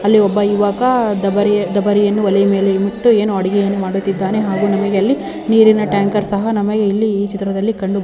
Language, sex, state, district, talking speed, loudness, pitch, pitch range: Kannada, female, Karnataka, Bijapur, 150 wpm, -15 LUFS, 205 Hz, 200-210 Hz